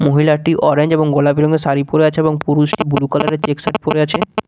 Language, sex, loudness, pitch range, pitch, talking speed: Bengali, male, -15 LUFS, 145-160 Hz, 155 Hz, 230 wpm